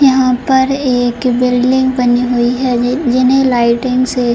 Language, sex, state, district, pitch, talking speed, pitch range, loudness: Hindi, female, Bihar, Purnia, 250 Hz, 165 wpm, 245-260 Hz, -12 LUFS